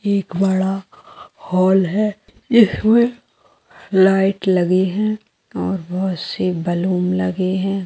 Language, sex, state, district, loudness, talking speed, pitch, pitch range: Magahi, female, Bihar, Gaya, -18 LUFS, 105 wpm, 190 Hz, 185-200 Hz